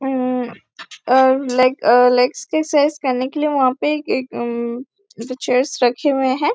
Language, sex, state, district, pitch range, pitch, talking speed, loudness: Hindi, female, Chhattisgarh, Bastar, 250-290 Hz, 255 Hz, 165 wpm, -17 LUFS